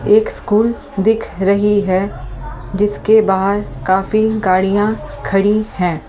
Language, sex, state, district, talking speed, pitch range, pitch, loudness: Hindi, female, Delhi, New Delhi, 120 wpm, 185-215 Hz, 200 Hz, -15 LUFS